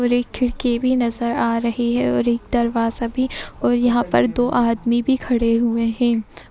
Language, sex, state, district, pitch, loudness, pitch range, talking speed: Hindi, female, Uttar Pradesh, Etah, 235 Hz, -19 LUFS, 230-245 Hz, 195 wpm